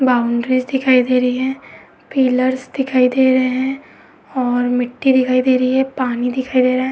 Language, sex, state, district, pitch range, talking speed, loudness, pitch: Hindi, female, Uttar Pradesh, Etah, 250-260 Hz, 180 wpm, -16 LUFS, 255 Hz